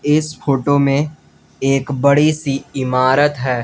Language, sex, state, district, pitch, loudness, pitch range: Hindi, male, Jharkhand, Garhwa, 140 Hz, -16 LUFS, 135-145 Hz